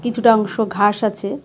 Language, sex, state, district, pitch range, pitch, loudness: Bengali, female, Tripura, West Tripura, 205-230 Hz, 215 Hz, -17 LUFS